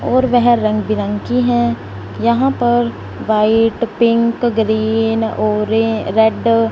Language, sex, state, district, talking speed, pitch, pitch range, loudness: Hindi, female, Punjab, Fazilka, 115 wpm, 225 Hz, 215-235 Hz, -15 LUFS